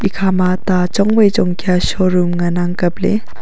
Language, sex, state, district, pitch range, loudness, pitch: Wancho, female, Arunachal Pradesh, Longding, 175-195 Hz, -15 LUFS, 185 Hz